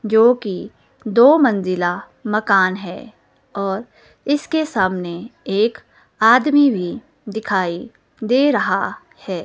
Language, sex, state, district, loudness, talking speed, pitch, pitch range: Hindi, female, Himachal Pradesh, Shimla, -18 LUFS, 95 wpm, 215 Hz, 185-250 Hz